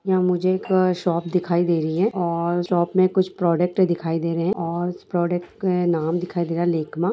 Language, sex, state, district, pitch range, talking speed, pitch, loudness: Hindi, female, Bihar, Begusarai, 170-185 Hz, 225 wpm, 175 Hz, -22 LUFS